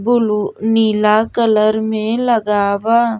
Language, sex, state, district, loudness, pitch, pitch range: Bhojpuri, female, Uttar Pradesh, Gorakhpur, -15 LUFS, 220 Hz, 210-230 Hz